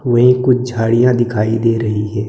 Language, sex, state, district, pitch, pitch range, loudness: Hindi, male, Maharashtra, Gondia, 115 Hz, 110-125 Hz, -14 LUFS